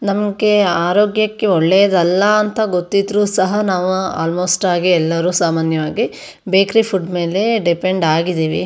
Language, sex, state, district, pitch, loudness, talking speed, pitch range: Kannada, female, Karnataka, Shimoga, 185 Hz, -15 LUFS, 110 wpm, 175-205 Hz